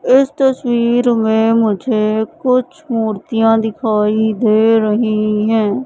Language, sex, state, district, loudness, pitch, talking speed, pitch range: Hindi, female, Madhya Pradesh, Katni, -14 LUFS, 225 Hz, 100 wpm, 215-245 Hz